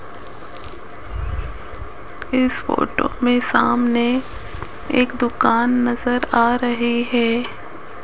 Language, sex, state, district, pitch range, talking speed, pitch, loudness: Hindi, female, Rajasthan, Jaipur, 240-250 Hz, 75 wpm, 245 Hz, -19 LUFS